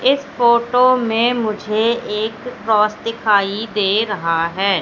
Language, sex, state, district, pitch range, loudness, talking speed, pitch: Hindi, female, Madhya Pradesh, Katni, 210-235 Hz, -17 LUFS, 125 wpm, 220 Hz